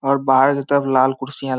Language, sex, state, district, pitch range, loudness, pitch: Hindi, male, Bihar, Samastipur, 135-140 Hz, -17 LUFS, 135 Hz